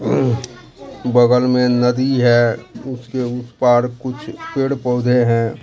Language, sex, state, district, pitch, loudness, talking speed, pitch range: Hindi, male, Bihar, Katihar, 125 Hz, -17 LUFS, 130 wpm, 120-125 Hz